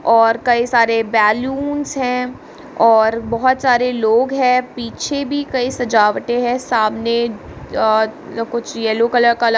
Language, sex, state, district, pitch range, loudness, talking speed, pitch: Hindi, female, Bihar, Muzaffarpur, 225-250 Hz, -16 LUFS, 145 wpm, 235 Hz